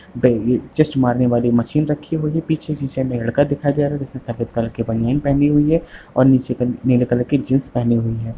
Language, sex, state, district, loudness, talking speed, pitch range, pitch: Hindi, male, Bihar, Sitamarhi, -18 LUFS, 245 wpm, 120-145 Hz, 130 Hz